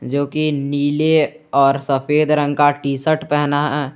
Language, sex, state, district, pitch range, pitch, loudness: Hindi, male, Jharkhand, Garhwa, 140-150 Hz, 145 Hz, -17 LUFS